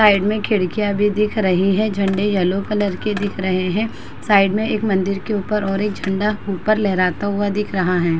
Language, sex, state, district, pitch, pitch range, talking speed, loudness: Hindi, female, Uttar Pradesh, Muzaffarnagar, 205 Hz, 190-210 Hz, 210 wpm, -19 LUFS